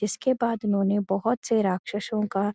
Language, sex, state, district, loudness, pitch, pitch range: Hindi, female, Uttarakhand, Uttarkashi, -26 LUFS, 210 Hz, 200-225 Hz